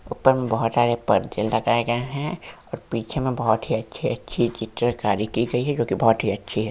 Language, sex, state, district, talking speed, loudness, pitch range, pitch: Hindi, female, Chhattisgarh, Balrampur, 215 wpm, -23 LUFS, 110-130 Hz, 120 Hz